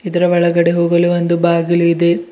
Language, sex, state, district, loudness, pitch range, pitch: Kannada, male, Karnataka, Bidar, -14 LUFS, 170-175 Hz, 170 Hz